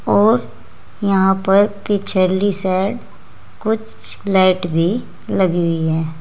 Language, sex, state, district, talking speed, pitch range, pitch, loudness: Hindi, female, Uttar Pradesh, Saharanpur, 105 wpm, 165-200 Hz, 190 Hz, -17 LUFS